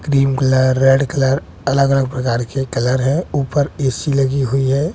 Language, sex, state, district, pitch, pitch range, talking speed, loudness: Hindi, male, Bihar, West Champaran, 135 Hz, 130-140 Hz, 180 wpm, -16 LUFS